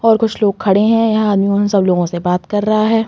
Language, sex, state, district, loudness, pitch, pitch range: Hindi, female, Chhattisgarh, Bastar, -14 LUFS, 205 Hz, 195-220 Hz